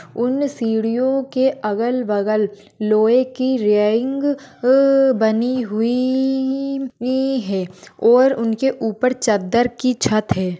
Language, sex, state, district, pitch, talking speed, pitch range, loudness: Hindi, female, Maharashtra, Pune, 250 Hz, 125 wpm, 220-265 Hz, -18 LUFS